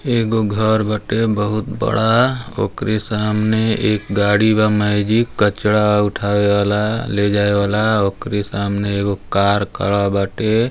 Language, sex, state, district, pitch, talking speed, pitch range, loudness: Bhojpuri, male, Uttar Pradesh, Deoria, 105 Hz, 130 wpm, 100-110 Hz, -17 LUFS